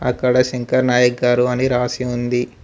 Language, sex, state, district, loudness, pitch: Telugu, male, Telangana, Mahabubabad, -17 LUFS, 125 Hz